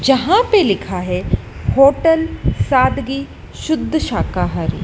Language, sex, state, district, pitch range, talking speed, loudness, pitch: Hindi, female, Madhya Pradesh, Dhar, 275-325 Hz, 100 wpm, -16 LUFS, 315 Hz